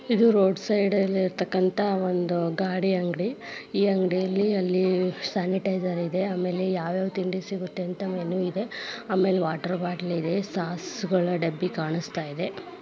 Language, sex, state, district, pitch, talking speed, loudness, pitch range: Kannada, female, Karnataka, Dharwad, 185 Hz, 90 wpm, -26 LUFS, 180-195 Hz